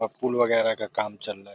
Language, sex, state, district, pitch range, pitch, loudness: Hindi, male, Uttar Pradesh, Deoria, 105-120 Hz, 110 Hz, -25 LUFS